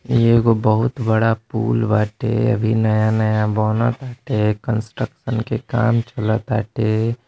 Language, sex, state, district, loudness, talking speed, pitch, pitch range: Bhojpuri, male, Uttar Pradesh, Deoria, -19 LUFS, 115 wpm, 115 Hz, 110-115 Hz